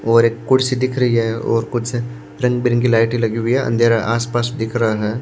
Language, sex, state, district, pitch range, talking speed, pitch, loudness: Hindi, male, Maharashtra, Washim, 115-125 Hz, 240 wpm, 120 Hz, -17 LUFS